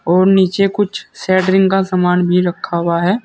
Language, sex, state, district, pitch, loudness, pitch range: Hindi, male, Uttar Pradesh, Saharanpur, 185 Hz, -14 LUFS, 180-195 Hz